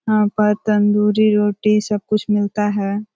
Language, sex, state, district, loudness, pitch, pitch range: Hindi, female, Uttar Pradesh, Ghazipur, -17 LUFS, 210 Hz, 205-215 Hz